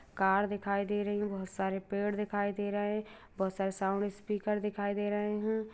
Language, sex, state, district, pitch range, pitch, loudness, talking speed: Hindi, female, Bihar, Lakhisarai, 200-210 Hz, 205 Hz, -34 LUFS, 200 wpm